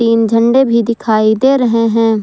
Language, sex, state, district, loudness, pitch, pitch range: Hindi, female, Jharkhand, Ranchi, -11 LUFS, 230 Hz, 225-235 Hz